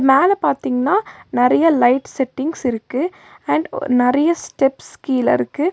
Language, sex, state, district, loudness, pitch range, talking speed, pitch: Tamil, female, Tamil Nadu, Nilgiris, -18 LUFS, 250-325 Hz, 135 wpm, 275 Hz